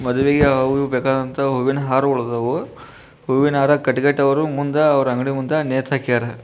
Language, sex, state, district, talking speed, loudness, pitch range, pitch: Kannada, male, Karnataka, Bijapur, 150 wpm, -18 LUFS, 130-140 Hz, 135 Hz